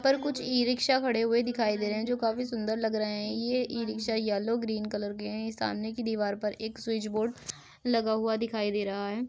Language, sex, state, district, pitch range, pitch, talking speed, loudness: Hindi, female, Uttar Pradesh, Etah, 215-240 Hz, 225 Hz, 245 wpm, -30 LUFS